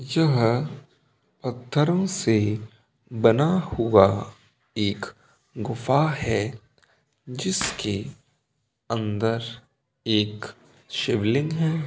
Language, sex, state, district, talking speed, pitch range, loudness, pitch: Hindi, male, Bihar, Purnia, 65 wpm, 110-140 Hz, -24 LUFS, 120 Hz